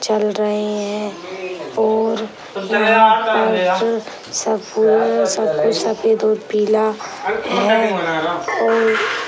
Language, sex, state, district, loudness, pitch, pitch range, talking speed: Hindi, male, Bihar, Sitamarhi, -17 LUFS, 215 Hz, 200-220 Hz, 85 wpm